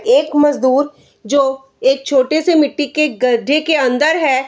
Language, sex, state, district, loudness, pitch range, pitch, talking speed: Hindi, female, Bihar, Araria, -14 LUFS, 265-305 Hz, 285 Hz, 160 wpm